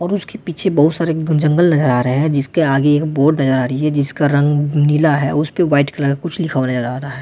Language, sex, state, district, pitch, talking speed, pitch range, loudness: Hindi, male, Delhi, New Delhi, 150 Hz, 275 wpm, 140-160 Hz, -15 LUFS